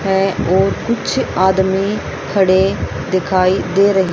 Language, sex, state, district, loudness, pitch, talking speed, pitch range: Hindi, female, Haryana, Rohtak, -15 LUFS, 190 Hz, 115 wpm, 185-195 Hz